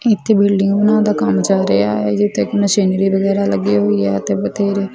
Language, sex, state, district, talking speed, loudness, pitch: Punjabi, female, Punjab, Fazilka, 205 wpm, -15 LUFS, 195 Hz